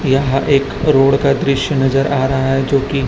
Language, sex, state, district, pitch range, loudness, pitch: Hindi, male, Chhattisgarh, Raipur, 135-140 Hz, -14 LUFS, 135 Hz